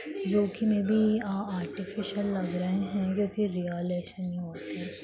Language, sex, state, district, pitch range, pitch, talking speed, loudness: Hindi, female, Bihar, Lakhisarai, 180-205 Hz, 195 Hz, 155 wpm, -30 LUFS